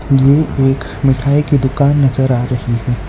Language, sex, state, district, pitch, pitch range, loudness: Hindi, male, Gujarat, Valsad, 135 Hz, 125-140 Hz, -14 LUFS